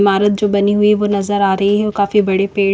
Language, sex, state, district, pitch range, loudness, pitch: Hindi, female, Chandigarh, Chandigarh, 200-210 Hz, -14 LUFS, 200 Hz